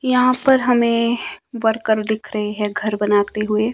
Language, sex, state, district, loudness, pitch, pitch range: Hindi, male, Himachal Pradesh, Shimla, -18 LUFS, 220 Hz, 210-245 Hz